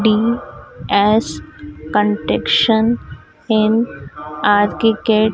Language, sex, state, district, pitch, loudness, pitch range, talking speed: Hindi, female, Madhya Pradesh, Dhar, 215 Hz, -16 LUFS, 200-225 Hz, 55 wpm